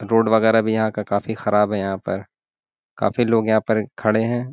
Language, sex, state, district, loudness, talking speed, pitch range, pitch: Hindi, male, Bihar, Gaya, -20 LUFS, 210 wpm, 105-115 Hz, 110 Hz